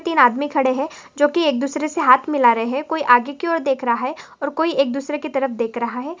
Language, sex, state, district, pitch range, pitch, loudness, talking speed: Hindi, female, Maharashtra, Pune, 255-305 Hz, 280 Hz, -19 LUFS, 270 wpm